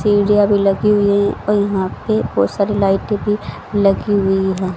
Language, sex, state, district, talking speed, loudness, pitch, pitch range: Hindi, female, Haryana, Rohtak, 175 wpm, -16 LUFS, 200 Hz, 195-205 Hz